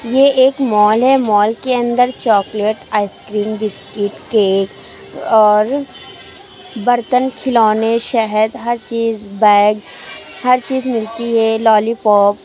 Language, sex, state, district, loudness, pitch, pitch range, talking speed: Hindi, female, Uttar Pradesh, Lucknow, -14 LUFS, 225 Hz, 210-245 Hz, 115 wpm